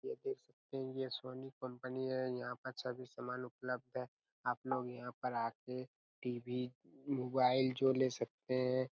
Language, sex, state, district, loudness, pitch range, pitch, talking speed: Hindi, male, Chhattisgarh, Raigarh, -41 LUFS, 125-130 Hz, 130 Hz, 160 wpm